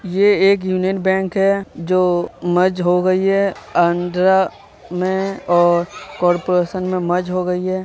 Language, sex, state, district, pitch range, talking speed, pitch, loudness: Hindi, male, Bihar, Vaishali, 175-190 Hz, 145 wpm, 185 Hz, -17 LUFS